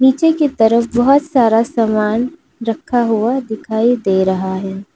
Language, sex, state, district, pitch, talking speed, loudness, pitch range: Hindi, female, Uttar Pradesh, Lalitpur, 230 Hz, 135 wpm, -15 LUFS, 220-255 Hz